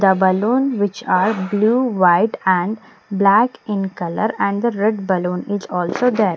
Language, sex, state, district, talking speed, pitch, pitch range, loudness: English, female, Punjab, Pathankot, 160 wpm, 205 Hz, 185-220 Hz, -18 LUFS